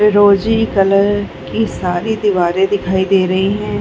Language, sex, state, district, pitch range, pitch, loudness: Hindi, female, Bihar, Darbhanga, 190-210 Hz, 200 Hz, -14 LUFS